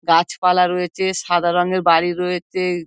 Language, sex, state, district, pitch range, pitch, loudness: Bengali, female, West Bengal, Dakshin Dinajpur, 175-180 Hz, 180 Hz, -18 LUFS